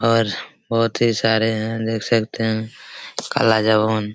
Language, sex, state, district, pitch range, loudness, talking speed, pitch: Hindi, male, Chhattisgarh, Raigarh, 110-115 Hz, -19 LUFS, 130 wpm, 110 Hz